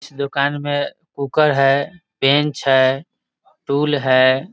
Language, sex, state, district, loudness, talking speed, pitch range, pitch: Hindi, male, Bihar, Muzaffarpur, -17 LUFS, 130 wpm, 135-145 Hz, 140 Hz